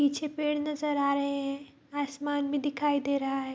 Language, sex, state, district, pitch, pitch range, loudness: Hindi, female, Bihar, Kishanganj, 285 Hz, 280-290 Hz, -30 LUFS